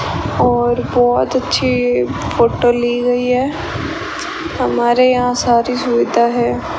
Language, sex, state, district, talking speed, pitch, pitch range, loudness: Hindi, female, Rajasthan, Bikaner, 105 wpm, 240 Hz, 235-245 Hz, -15 LUFS